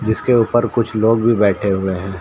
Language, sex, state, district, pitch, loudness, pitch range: Hindi, male, Bihar, Saran, 110 Hz, -16 LUFS, 100-115 Hz